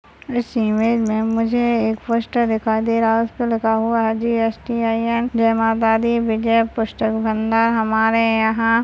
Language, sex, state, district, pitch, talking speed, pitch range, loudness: Hindi, female, Bihar, Jahanabad, 225 Hz, 165 wpm, 225-230 Hz, -18 LUFS